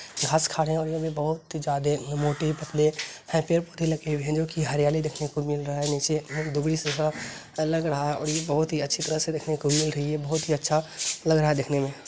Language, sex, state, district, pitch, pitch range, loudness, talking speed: Hindi, male, Bihar, Bhagalpur, 155 Hz, 145-160 Hz, -26 LUFS, 230 wpm